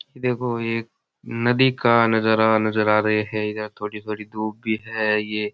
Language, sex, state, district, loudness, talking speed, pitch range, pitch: Rajasthani, male, Rajasthan, Churu, -21 LUFS, 185 wpm, 105-115 Hz, 110 Hz